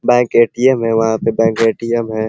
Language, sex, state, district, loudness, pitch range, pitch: Hindi, male, Uttar Pradesh, Ghazipur, -14 LUFS, 115-120 Hz, 115 Hz